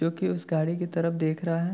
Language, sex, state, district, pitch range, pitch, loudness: Hindi, male, Jharkhand, Sahebganj, 160-175 Hz, 165 Hz, -28 LUFS